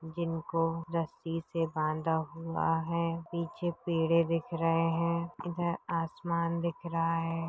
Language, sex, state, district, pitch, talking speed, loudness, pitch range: Hindi, female, Maharashtra, Pune, 165 Hz, 130 wpm, -32 LUFS, 165-170 Hz